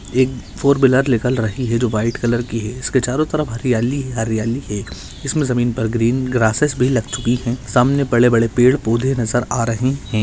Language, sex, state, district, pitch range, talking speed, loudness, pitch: Hindi, male, Maharashtra, Aurangabad, 115-130 Hz, 215 wpm, -18 LUFS, 120 Hz